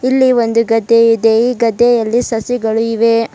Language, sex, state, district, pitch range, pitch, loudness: Kannada, female, Karnataka, Bidar, 225-240 Hz, 230 Hz, -12 LUFS